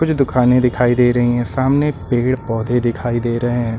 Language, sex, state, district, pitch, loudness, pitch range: Hindi, male, Uttar Pradesh, Lucknow, 120 Hz, -16 LUFS, 120-130 Hz